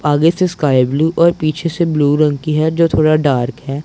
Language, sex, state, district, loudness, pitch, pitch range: Hindi, male, Punjab, Pathankot, -14 LUFS, 155 Hz, 145-165 Hz